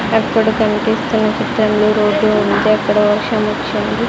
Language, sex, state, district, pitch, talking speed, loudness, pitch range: Telugu, female, Andhra Pradesh, Sri Satya Sai, 215 Hz, 115 wpm, -14 LUFS, 210-220 Hz